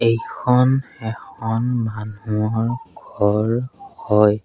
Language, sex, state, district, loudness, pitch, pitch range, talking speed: Assamese, male, Assam, Sonitpur, -21 LUFS, 115 Hz, 105-125 Hz, 65 wpm